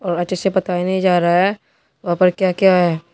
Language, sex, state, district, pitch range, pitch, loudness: Hindi, male, Tripura, West Tripura, 175-190 Hz, 185 Hz, -16 LUFS